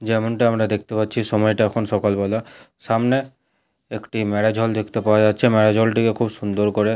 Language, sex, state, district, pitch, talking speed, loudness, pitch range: Bengali, male, West Bengal, Paschim Medinipur, 110 Hz, 145 wpm, -19 LUFS, 105-115 Hz